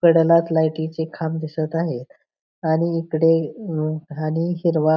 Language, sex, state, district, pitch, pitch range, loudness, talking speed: Marathi, female, Maharashtra, Pune, 160 Hz, 155-165 Hz, -21 LUFS, 110 wpm